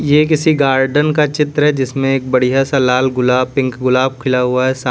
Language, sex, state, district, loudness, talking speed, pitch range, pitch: Hindi, male, Uttar Pradesh, Lucknow, -14 LUFS, 220 wpm, 130-145 Hz, 135 Hz